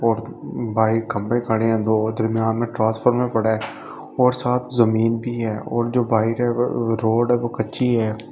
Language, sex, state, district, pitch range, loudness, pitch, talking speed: Hindi, male, Delhi, New Delhi, 110-120 Hz, -21 LUFS, 115 Hz, 185 wpm